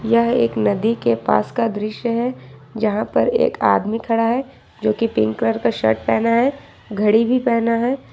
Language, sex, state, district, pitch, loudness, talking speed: Hindi, female, Jharkhand, Ranchi, 220 Hz, -19 LUFS, 190 wpm